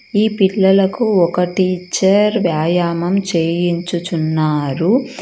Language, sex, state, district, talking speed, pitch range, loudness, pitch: Telugu, female, Karnataka, Bangalore, 70 wpm, 170-195 Hz, -15 LUFS, 180 Hz